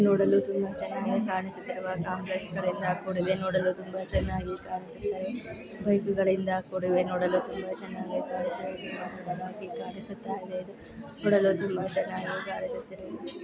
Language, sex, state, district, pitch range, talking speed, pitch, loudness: Kannada, female, Karnataka, Bellary, 185-195 Hz, 80 wpm, 185 Hz, -31 LUFS